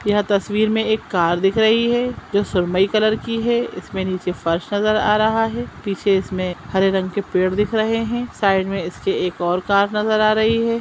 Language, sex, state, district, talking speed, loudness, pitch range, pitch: Hindi, female, Bihar, Jamui, 215 wpm, -19 LUFS, 190-220 Hz, 205 Hz